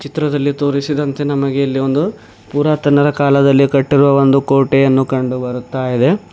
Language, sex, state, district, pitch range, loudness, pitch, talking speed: Kannada, male, Karnataka, Bidar, 135-145 Hz, -14 LUFS, 140 Hz, 125 wpm